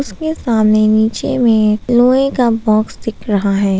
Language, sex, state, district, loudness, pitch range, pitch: Hindi, female, Arunachal Pradesh, Papum Pare, -14 LUFS, 215-245 Hz, 225 Hz